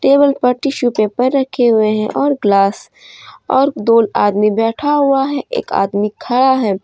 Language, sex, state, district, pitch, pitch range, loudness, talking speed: Hindi, female, Jharkhand, Deoghar, 245 Hz, 215-275 Hz, -14 LUFS, 165 wpm